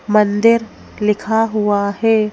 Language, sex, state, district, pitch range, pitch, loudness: Hindi, female, Madhya Pradesh, Bhopal, 210-225 Hz, 215 Hz, -16 LUFS